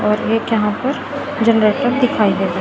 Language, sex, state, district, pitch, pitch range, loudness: Hindi, female, Chhattisgarh, Raipur, 225 Hz, 210-260 Hz, -16 LUFS